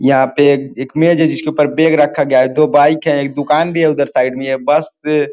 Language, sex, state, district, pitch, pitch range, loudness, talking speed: Hindi, male, Uttar Pradesh, Ghazipur, 145 Hz, 135-155 Hz, -13 LUFS, 280 wpm